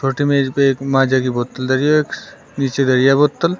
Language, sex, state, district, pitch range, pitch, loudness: Hindi, male, Uttar Pradesh, Shamli, 130-140 Hz, 135 Hz, -16 LUFS